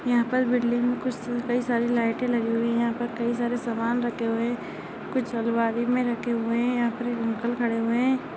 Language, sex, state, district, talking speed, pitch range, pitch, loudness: Hindi, female, Chhattisgarh, Raigarh, 220 wpm, 235-245 Hz, 240 Hz, -26 LUFS